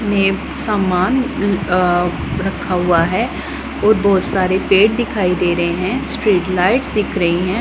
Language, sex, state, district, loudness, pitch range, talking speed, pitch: Hindi, female, Punjab, Pathankot, -16 LUFS, 180-210 Hz, 150 wpm, 190 Hz